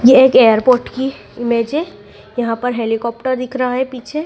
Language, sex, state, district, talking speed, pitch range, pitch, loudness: Hindi, female, Madhya Pradesh, Dhar, 185 wpm, 235-260 Hz, 250 Hz, -15 LUFS